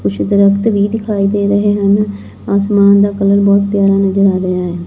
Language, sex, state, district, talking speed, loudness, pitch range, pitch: Punjabi, female, Punjab, Fazilka, 195 wpm, -12 LUFS, 195-205 Hz, 200 Hz